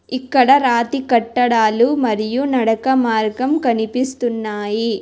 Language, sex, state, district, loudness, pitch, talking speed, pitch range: Telugu, female, Telangana, Hyderabad, -16 LUFS, 240 Hz, 85 wpm, 225-260 Hz